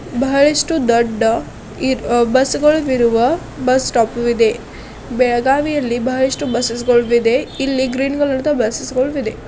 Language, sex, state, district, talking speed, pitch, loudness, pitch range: Kannada, female, Karnataka, Belgaum, 115 wpm, 255 Hz, -16 LUFS, 235-275 Hz